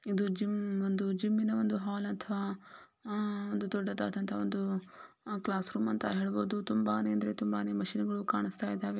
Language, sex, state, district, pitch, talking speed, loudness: Kannada, female, Karnataka, Belgaum, 195 Hz, 140 wpm, -34 LUFS